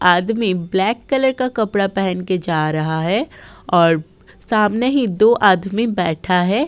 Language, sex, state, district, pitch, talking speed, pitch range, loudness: Hindi, female, Uttar Pradesh, Jyotiba Phule Nagar, 195 Hz, 150 wpm, 180-225 Hz, -17 LUFS